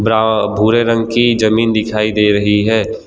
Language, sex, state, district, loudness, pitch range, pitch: Hindi, male, Gujarat, Valsad, -13 LUFS, 105-115 Hz, 110 Hz